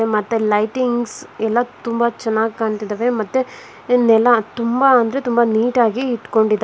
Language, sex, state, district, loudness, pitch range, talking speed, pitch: Kannada, female, Karnataka, Bangalore, -17 LUFS, 220-245 Hz, 125 wpm, 235 Hz